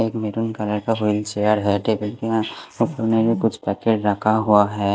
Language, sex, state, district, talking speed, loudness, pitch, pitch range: Hindi, male, Haryana, Rohtak, 145 wpm, -20 LUFS, 110 Hz, 105-115 Hz